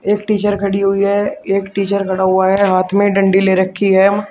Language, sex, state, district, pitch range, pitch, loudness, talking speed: Hindi, male, Uttar Pradesh, Shamli, 190-205 Hz, 195 Hz, -14 LUFS, 220 wpm